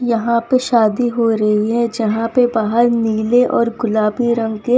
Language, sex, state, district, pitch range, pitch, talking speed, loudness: Hindi, female, Gujarat, Valsad, 220-240 Hz, 230 Hz, 190 wpm, -16 LUFS